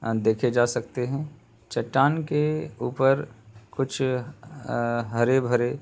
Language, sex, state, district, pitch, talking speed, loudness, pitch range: Hindi, male, Uttar Pradesh, Hamirpur, 130 Hz, 125 wpm, -25 LUFS, 120-145 Hz